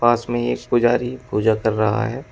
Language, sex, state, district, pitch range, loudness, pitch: Hindi, male, Uttar Pradesh, Shamli, 110-120 Hz, -20 LUFS, 120 Hz